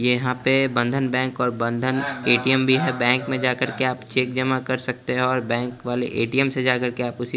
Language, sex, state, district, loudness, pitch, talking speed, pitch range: Hindi, male, Chandigarh, Chandigarh, -21 LUFS, 125 Hz, 235 wpm, 125-130 Hz